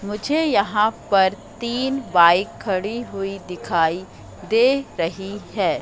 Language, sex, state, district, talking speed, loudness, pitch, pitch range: Hindi, female, Madhya Pradesh, Katni, 115 wpm, -20 LUFS, 200 Hz, 185-235 Hz